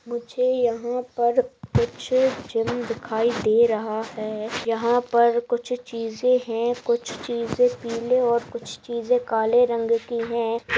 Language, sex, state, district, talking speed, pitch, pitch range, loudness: Hindi, female, Bihar, Bhagalpur, 130 wpm, 235 Hz, 230-245 Hz, -23 LUFS